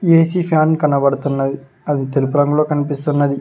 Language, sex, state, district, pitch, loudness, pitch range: Telugu, male, Telangana, Mahabubabad, 145 Hz, -16 LUFS, 140-155 Hz